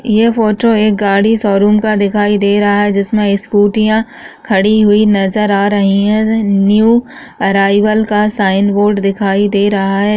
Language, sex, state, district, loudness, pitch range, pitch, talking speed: Hindi, female, Rajasthan, Churu, -11 LUFS, 200-215 Hz, 205 Hz, 160 wpm